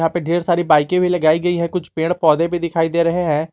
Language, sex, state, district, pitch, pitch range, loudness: Hindi, male, Jharkhand, Garhwa, 170 Hz, 160-175 Hz, -17 LUFS